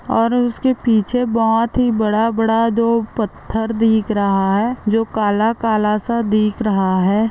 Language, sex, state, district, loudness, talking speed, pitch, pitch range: Hindi, female, Andhra Pradesh, Chittoor, -17 LUFS, 140 wpm, 225 Hz, 215-230 Hz